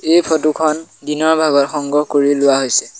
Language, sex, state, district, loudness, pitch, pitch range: Assamese, male, Assam, Sonitpur, -15 LUFS, 150 Hz, 140-160 Hz